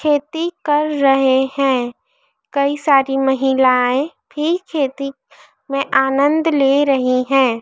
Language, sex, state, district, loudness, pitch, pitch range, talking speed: Hindi, female, Madhya Pradesh, Dhar, -16 LUFS, 275 Hz, 265-295 Hz, 110 wpm